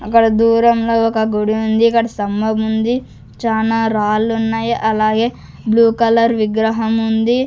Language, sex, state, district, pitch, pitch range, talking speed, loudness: Telugu, female, Andhra Pradesh, Sri Satya Sai, 225 Hz, 220-230 Hz, 130 wpm, -15 LUFS